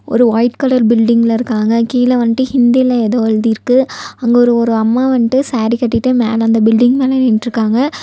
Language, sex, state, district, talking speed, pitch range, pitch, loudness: Tamil, female, Tamil Nadu, Nilgiris, 165 wpm, 225-250 Hz, 240 Hz, -12 LUFS